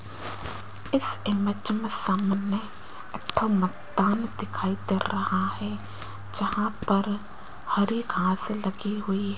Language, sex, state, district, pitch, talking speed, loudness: Hindi, female, Rajasthan, Jaipur, 195 Hz, 115 wpm, -27 LUFS